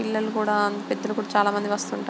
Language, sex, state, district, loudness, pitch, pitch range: Telugu, female, Andhra Pradesh, Guntur, -24 LUFS, 215 Hz, 205-220 Hz